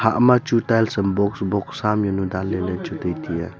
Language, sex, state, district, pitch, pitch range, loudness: Wancho, male, Arunachal Pradesh, Longding, 100 Hz, 95-110 Hz, -21 LUFS